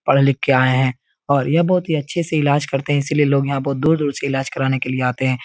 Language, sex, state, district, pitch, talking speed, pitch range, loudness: Hindi, male, Uttar Pradesh, Etah, 140 Hz, 295 wpm, 130-150 Hz, -18 LUFS